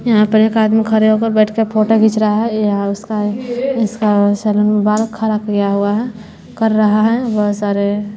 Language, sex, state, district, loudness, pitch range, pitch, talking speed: Hindi, female, Bihar, West Champaran, -14 LUFS, 210-220 Hz, 215 Hz, 200 wpm